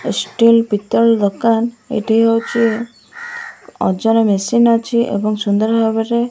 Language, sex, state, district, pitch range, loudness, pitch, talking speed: Odia, female, Odisha, Malkangiri, 220-235 Hz, -15 LUFS, 230 Hz, 115 wpm